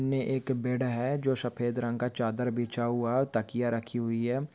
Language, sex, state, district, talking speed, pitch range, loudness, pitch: Hindi, male, Maharashtra, Dhule, 200 wpm, 120-130 Hz, -30 LUFS, 120 Hz